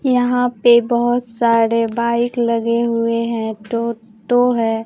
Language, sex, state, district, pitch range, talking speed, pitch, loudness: Hindi, female, Bihar, Katihar, 230-240 Hz, 135 wpm, 235 Hz, -17 LUFS